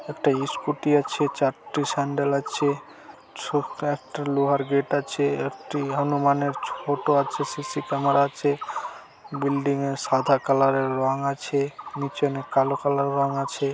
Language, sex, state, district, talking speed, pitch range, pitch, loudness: Bengali, male, West Bengal, Dakshin Dinajpur, 145 wpm, 140-145 Hz, 140 Hz, -24 LUFS